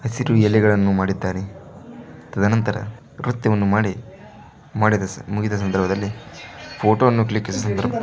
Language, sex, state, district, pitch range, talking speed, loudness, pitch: Kannada, male, Karnataka, Shimoga, 100-110 Hz, 75 wpm, -20 LUFS, 105 Hz